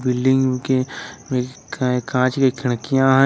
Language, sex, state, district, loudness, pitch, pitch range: Hindi, male, Jharkhand, Ranchi, -20 LUFS, 130 Hz, 125-135 Hz